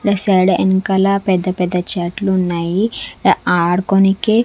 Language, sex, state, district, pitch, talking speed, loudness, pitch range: Telugu, female, Andhra Pradesh, Sri Satya Sai, 190 Hz, 95 wpm, -15 LUFS, 180-195 Hz